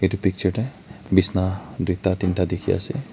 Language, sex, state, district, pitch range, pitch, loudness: Nagamese, male, Nagaland, Kohima, 90-100 Hz, 95 Hz, -23 LUFS